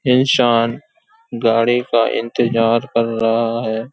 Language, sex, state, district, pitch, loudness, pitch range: Hindi, male, Uttar Pradesh, Hamirpur, 115 Hz, -16 LUFS, 115-125 Hz